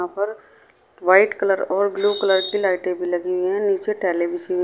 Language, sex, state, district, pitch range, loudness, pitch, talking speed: Hindi, female, Uttar Pradesh, Saharanpur, 180-205 Hz, -20 LUFS, 195 Hz, 220 wpm